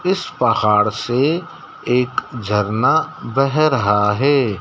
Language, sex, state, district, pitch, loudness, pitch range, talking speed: Hindi, male, Madhya Pradesh, Dhar, 125 Hz, -17 LUFS, 105-140 Hz, 105 wpm